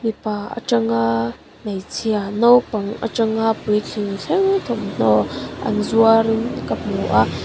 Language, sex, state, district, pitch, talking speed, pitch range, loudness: Mizo, female, Mizoram, Aizawl, 215 Hz, 115 wpm, 200-225 Hz, -19 LUFS